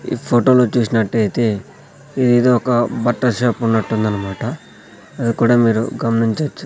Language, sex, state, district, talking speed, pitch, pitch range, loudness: Telugu, male, Andhra Pradesh, Sri Satya Sai, 115 wpm, 115 Hz, 110-120 Hz, -17 LUFS